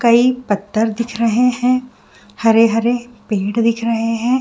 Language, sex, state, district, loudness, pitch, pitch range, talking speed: Hindi, female, Jharkhand, Jamtara, -16 LUFS, 230 Hz, 225-245 Hz, 135 wpm